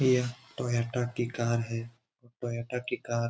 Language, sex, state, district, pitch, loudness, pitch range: Hindi, male, Bihar, Lakhisarai, 120 Hz, -32 LUFS, 115-125 Hz